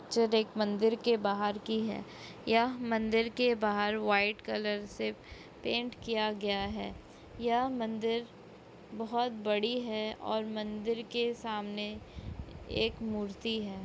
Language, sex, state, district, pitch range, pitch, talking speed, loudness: Hindi, female, Jharkhand, Jamtara, 205-230 Hz, 220 Hz, 135 wpm, -33 LUFS